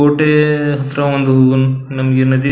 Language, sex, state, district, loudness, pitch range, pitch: Kannada, male, Karnataka, Belgaum, -13 LUFS, 130-145 Hz, 140 Hz